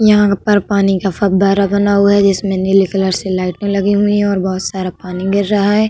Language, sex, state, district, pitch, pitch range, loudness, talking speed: Hindi, female, Uttar Pradesh, Budaun, 200 Hz, 190-205 Hz, -14 LUFS, 245 wpm